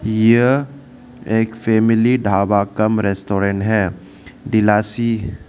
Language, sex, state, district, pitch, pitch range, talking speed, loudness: Hindi, male, Arunachal Pradesh, Lower Dibang Valley, 110 Hz, 100-115 Hz, 85 wpm, -16 LUFS